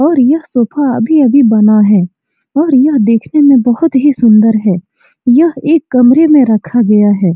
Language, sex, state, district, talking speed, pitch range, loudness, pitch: Hindi, female, Bihar, Supaul, 190 wpm, 215-290 Hz, -9 LUFS, 250 Hz